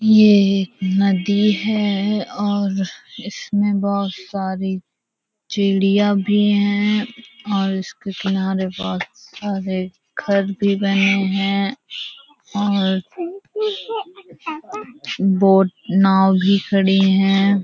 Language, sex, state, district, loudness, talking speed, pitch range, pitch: Hindi, female, Uttar Pradesh, Hamirpur, -18 LUFS, 90 wpm, 195-210 Hz, 200 Hz